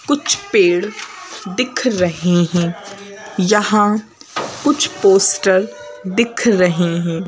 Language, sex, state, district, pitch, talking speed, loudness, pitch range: Hindi, female, Madhya Pradesh, Bhopal, 200 Hz, 90 wpm, -16 LUFS, 180-240 Hz